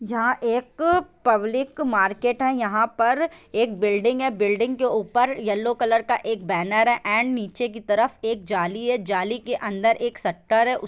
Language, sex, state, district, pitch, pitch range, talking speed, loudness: Hindi, female, Bihar, East Champaran, 230 Hz, 215-245 Hz, 185 wpm, -22 LUFS